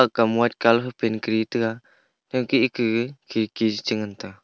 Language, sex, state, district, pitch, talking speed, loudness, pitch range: Wancho, male, Arunachal Pradesh, Longding, 115 Hz, 175 wpm, -23 LUFS, 110-120 Hz